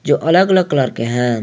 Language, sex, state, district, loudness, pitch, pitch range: Hindi, male, Jharkhand, Garhwa, -15 LUFS, 145 Hz, 120-180 Hz